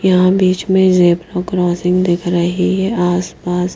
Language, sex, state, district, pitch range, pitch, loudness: Hindi, female, Haryana, Jhajjar, 175-185 Hz, 180 Hz, -14 LUFS